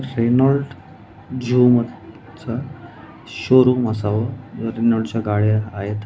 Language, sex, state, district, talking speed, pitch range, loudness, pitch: Marathi, male, Maharashtra, Mumbai Suburban, 90 wpm, 110-130 Hz, -19 LUFS, 115 Hz